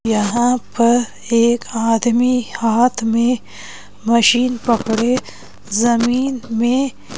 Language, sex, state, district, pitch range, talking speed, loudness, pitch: Hindi, female, Madhya Pradesh, Bhopal, 230-245 Hz, 85 wpm, -16 LUFS, 235 Hz